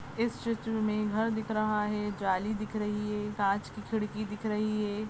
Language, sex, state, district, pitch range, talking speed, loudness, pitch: Hindi, female, Goa, North and South Goa, 210-215 Hz, 200 wpm, -32 LUFS, 215 Hz